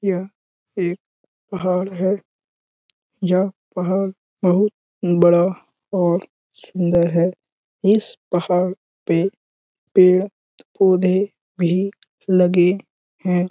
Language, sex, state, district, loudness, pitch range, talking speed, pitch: Hindi, male, Bihar, Lakhisarai, -19 LUFS, 180-195 Hz, 90 wpm, 185 Hz